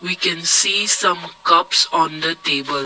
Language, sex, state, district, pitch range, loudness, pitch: English, male, Assam, Kamrup Metropolitan, 155-185 Hz, -16 LUFS, 165 Hz